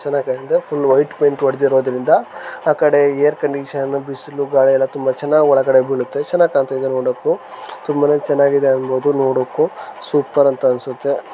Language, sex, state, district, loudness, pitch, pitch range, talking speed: Kannada, male, Karnataka, Gulbarga, -16 LUFS, 140 Hz, 135-145 Hz, 140 wpm